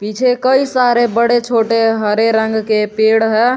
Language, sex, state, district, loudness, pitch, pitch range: Hindi, male, Jharkhand, Garhwa, -13 LUFS, 225 Hz, 220-240 Hz